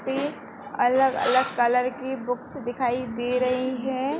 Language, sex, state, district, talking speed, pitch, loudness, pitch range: Hindi, female, Jharkhand, Sahebganj, 145 wpm, 255 Hz, -24 LUFS, 245-265 Hz